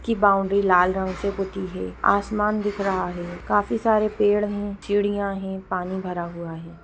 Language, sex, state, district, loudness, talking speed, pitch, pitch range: Hindi, female, Bihar, Gopalganj, -23 LUFS, 185 wpm, 195 Hz, 185-205 Hz